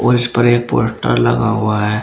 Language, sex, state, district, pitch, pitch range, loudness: Hindi, male, Uttar Pradesh, Shamli, 110 Hz, 105-120 Hz, -15 LUFS